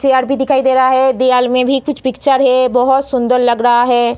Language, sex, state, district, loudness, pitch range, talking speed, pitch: Hindi, female, Bihar, Lakhisarai, -12 LUFS, 250-265 Hz, 245 wpm, 260 Hz